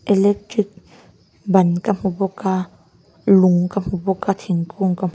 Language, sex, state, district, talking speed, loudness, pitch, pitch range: Mizo, female, Mizoram, Aizawl, 150 wpm, -19 LUFS, 190 Hz, 180-200 Hz